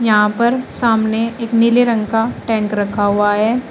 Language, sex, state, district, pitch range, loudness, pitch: Hindi, female, Uttar Pradesh, Shamli, 210-235 Hz, -15 LUFS, 225 Hz